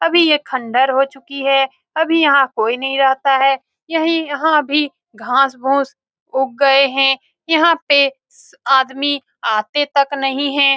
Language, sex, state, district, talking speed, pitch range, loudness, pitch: Hindi, female, Bihar, Saran, 175 wpm, 270-290 Hz, -15 LUFS, 275 Hz